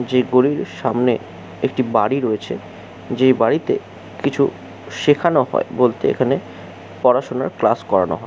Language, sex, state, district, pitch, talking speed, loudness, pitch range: Bengali, male, West Bengal, Jhargram, 125 Hz, 125 wpm, -18 LUFS, 95-130 Hz